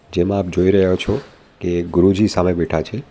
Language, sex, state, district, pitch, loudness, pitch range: Gujarati, male, Gujarat, Valsad, 90 Hz, -18 LUFS, 85-100 Hz